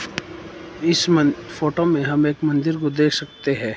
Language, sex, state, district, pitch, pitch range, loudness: Hindi, male, Himachal Pradesh, Shimla, 150 Hz, 145-160 Hz, -20 LUFS